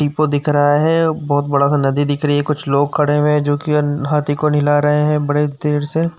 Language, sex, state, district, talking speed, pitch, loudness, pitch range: Hindi, male, Uttar Pradesh, Jyotiba Phule Nagar, 240 wpm, 145 Hz, -16 LUFS, 145-150 Hz